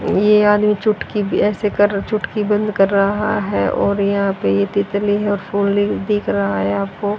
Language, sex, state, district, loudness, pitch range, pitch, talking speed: Hindi, female, Haryana, Jhajjar, -17 LUFS, 200-210 Hz, 205 Hz, 190 wpm